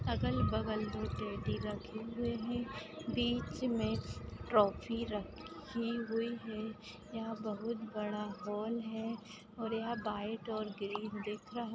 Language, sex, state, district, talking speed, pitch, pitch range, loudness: Hindi, female, Maharashtra, Chandrapur, 130 wpm, 220 Hz, 210-230 Hz, -38 LUFS